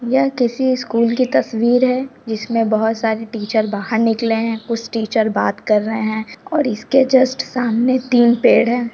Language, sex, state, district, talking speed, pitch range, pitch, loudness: Hindi, female, Bihar, Samastipur, 180 wpm, 225-255 Hz, 230 Hz, -17 LUFS